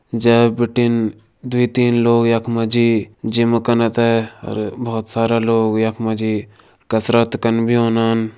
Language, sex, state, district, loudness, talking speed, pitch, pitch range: Kumaoni, male, Uttarakhand, Tehri Garhwal, -17 LUFS, 135 wpm, 115 Hz, 110-120 Hz